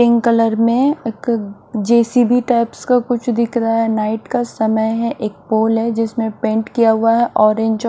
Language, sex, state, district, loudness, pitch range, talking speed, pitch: Hindi, female, Odisha, Nuapada, -16 LUFS, 220-235 Hz, 190 wpm, 230 Hz